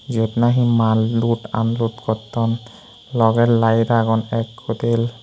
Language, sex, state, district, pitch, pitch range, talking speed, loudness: Chakma, male, Tripura, Unakoti, 115 Hz, 115-120 Hz, 135 wpm, -19 LUFS